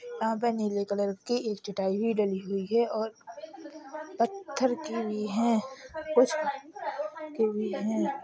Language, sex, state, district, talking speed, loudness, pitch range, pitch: Hindi, female, Uttar Pradesh, Hamirpur, 145 wpm, -30 LUFS, 210-280 Hz, 230 Hz